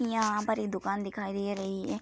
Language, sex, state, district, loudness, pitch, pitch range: Hindi, female, Bihar, Araria, -32 LUFS, 200 Hz, 195-215 Hz